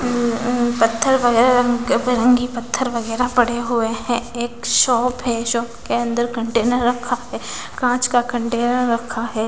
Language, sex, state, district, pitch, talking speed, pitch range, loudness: Hindi, female, Bihar, West Champaran, 240 Hz, 160 wpm, 235-245 Hz, -19 LUFS